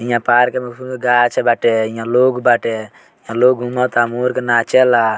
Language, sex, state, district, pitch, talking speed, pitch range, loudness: Bhojpuri, male, Bihar, Muzaffarpur, 120 Hz, 160 wpm, 115-125 Hz, -15 LUFS